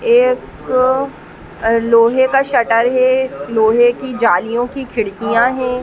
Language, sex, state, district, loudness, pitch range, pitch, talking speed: Hindi, female, Uttar Pradesh, Etah, -14 LUFS, 230-260 Hz, 245 Hz, 115 wpm